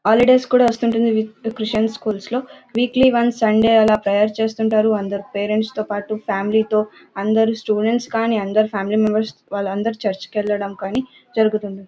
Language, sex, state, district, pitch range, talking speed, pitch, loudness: Telugu, female, Karnataka, Bellary, 210-230 Hz, 140 wpm, 220 Hz, -19 LUFS